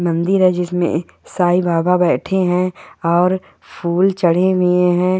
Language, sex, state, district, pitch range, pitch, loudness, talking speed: Hindi, female, Goa, North and South Goa, 175-185 Hz, 180 Hz, -16 LUFS, 140 wpm